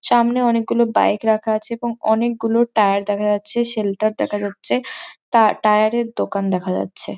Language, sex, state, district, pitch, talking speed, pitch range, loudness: Bengali, female, West Bengal, Jhargram, 220 Hz, 185 wpm, 210-235 Hz, -19 LUFS